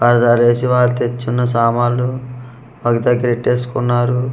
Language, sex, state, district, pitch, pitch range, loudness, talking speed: Telugu, male, Andhra Pradesh, Manyam, 120 Hz, 120-125 Hz, -15 LUFS, 95 wpm